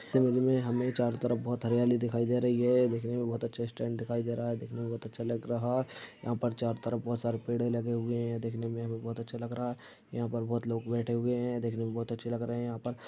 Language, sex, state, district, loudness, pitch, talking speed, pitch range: Hindi, male, Chhattisgarh, Kabirdham, -32 LUFS, 120 Hz, 270 wpm, 115-120 Hz